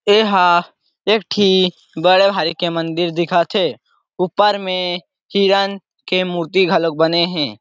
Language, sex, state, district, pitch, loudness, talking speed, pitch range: Chhattisgarhi, male, Chhattisgarh, Sarguja, 180 Hz, -16 LUFS, 150 wpm, 170-195 Hz